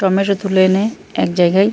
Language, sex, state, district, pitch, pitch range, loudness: Bengali, male, Jharkhand, Jamtara, 195 Hz, 190-200 Hz, -15 LUFS